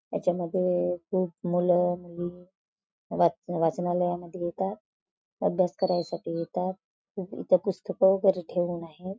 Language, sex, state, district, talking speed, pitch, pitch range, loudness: Marathi, female, Maharashtra, Chandrapur, 105 wpm, 180 Hz, 175-190 Hz, -28 LUFS